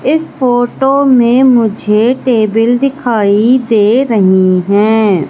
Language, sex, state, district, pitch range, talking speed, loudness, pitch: Hindi, female, Madhya Pradesh, Katni, 210-260 Hz, 100 wpm, -10 LUFS, 235 Hz